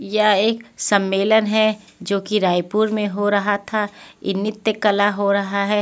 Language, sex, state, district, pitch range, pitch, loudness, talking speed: Hindi, female, Punjab, Pathankot, 200-215 Hz, 205 Hz, -19 LUFS, 175 wpm